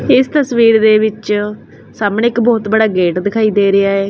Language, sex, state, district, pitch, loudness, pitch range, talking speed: Punjabi, female, Punjab, Kapurthala, 215 Hz, -12 LUFS, 205-230 Hz, 190 wpm